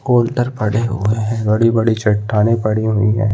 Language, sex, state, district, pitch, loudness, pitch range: Hindi, male, Chhattisgarh, Balrampur, 110 Hz, -16 LUFS, 105-115 Hz